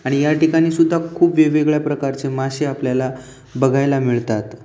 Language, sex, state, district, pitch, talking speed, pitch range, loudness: Marathi, male, Maharashtra, Aurangabad, 135 Hz, 140 wpm, 130-155 Hz, -17 LUFS